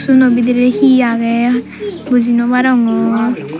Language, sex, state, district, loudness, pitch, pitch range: Chakma, female, Tripura, Dhalai, -12 LUFS, 245 Hz, 235-255 Hz